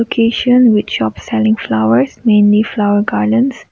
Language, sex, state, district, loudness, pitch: English, female, Nagaland, Kohima, -13 LUFS, 210 Hz